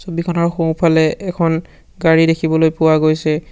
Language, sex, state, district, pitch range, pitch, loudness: Assamese, male, Assam, Sonitpur, 160-170 Hz, 160 Hz, -15 LUFS